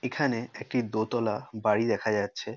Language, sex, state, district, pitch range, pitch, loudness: Bengali, male, West Bengal, North 24 Parganas, 105-120 Hz, 110 Hz, -29 LUFS